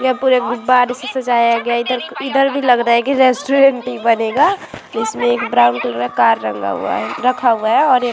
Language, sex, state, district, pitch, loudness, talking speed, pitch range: Hindi, female, Bihar, Vaishali, 245 Hz, -15 LUFS, 190 wpm, 230-260 Hz